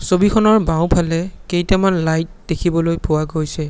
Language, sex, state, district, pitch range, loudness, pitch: Assamese, male, Assam, Sonitpur, 160-190 Hz, -17 LUFS, 170 Hz